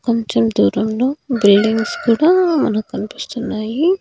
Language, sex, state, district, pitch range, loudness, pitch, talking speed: Telugu, female, Andhra Pradesh, Annamaya, 215-285 Hz, -16 LUFS, 230 Hz, 90 wpm